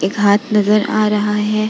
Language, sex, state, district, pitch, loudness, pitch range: Hindi, female, Bihar, Vaishali, 210 Hz, -15 LUFS, 210-215 Hz